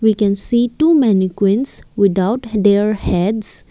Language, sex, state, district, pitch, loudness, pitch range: English, female, Assam, Kamrup Metropolitan, 210 Hz, -15 LUFS, 200-235 Hz